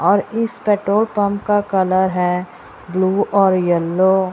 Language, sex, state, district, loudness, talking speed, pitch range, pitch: Hindi, female, Bihar, Purnia, -17 LUFS, 150 wpm, 185-205 Hz, 190 Hz